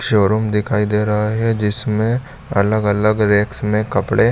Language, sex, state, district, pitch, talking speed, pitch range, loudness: Hindi, male, Chhattisgarh, Bilaspur, 105 Hz, 140 wpm, 105-110 Hz, -17 LUFS